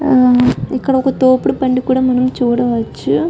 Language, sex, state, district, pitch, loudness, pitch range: Telugu, female, Telangana, Karimnagar, 255 Hz, -14 LUFS, 245-260 Hz